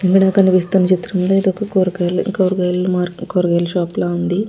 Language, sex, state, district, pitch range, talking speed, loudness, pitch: Telugu, female, Andhra Pradesh, Guntur, 180-190 Hz, 145 wpm, -16 LUFS, 185 Hz